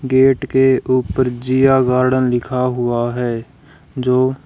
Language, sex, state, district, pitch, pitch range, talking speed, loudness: Hindi, female, Haryana, Jhajjar, 130 Hz, 125-130 Hz, 120 wpm, -16 LUFS